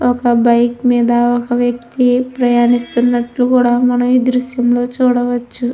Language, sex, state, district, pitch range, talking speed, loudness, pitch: Telugu, female, Andhra Pradesh, Anantapur, 240-250 Hz, 115 wpm, -14 LUFS, 245 Hz